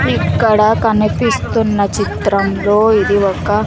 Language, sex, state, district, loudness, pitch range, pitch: Telugu, female, Andhra Pradesh, Sri Satya Sai, -13 LUFS, 200-215 Hz, 210 Hz